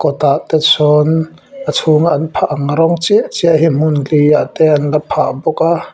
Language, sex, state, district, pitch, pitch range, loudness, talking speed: Mizo, male, Mizoram, Aizawl, 160 Hz, 150-165 Hz, -12 LUFS, 220 wpm